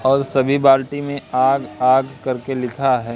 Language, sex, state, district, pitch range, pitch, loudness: Hindi, male, Madhya Pradesh, Katni, 130-140 Hz, 135 Hz, -18 LUFS